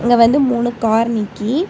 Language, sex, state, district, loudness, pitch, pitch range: Tamil, female, Tamil Nadu, Kanyakumari, -16 LUFS, 235 Hz, 225-250 Hz